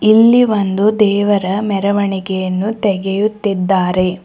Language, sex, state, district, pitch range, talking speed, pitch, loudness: Kannada, female, Karnataka, Bidar, 190-210 Hz, 70 wpm, 200 Hz, -14 LUFS